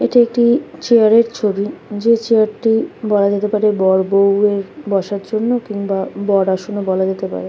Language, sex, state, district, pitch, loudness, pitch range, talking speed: Bengali, female, West Bengal, Kolkata, 205 Hz, -16 LUFS, 195-225 Hz, 185 wpm